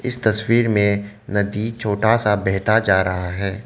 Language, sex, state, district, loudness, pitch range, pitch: Hindi, male, Arunachal Pradesh, Lower Dibang Valley, -19 LUFS, 100-110 Hz, 105 Hz